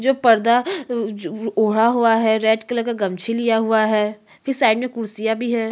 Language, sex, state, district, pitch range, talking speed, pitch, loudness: Hindi, female, Chhattisgarh, Sukma, 220-240 Hz, 220 wpm, 225 Hz, -19 LUFS